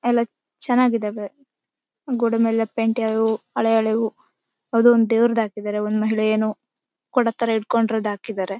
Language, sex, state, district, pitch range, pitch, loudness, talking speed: Kannada, female, Karnataka, Bellary, 215-235 Hz, 225 Hz, -21 LUFS, 140 wpm